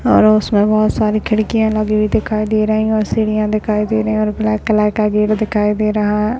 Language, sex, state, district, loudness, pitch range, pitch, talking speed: Hindi, male, Uttarakhand, Tehri Garhwal, -15 LUFS, 210-215 Hz, 215 Hz, 245 wpm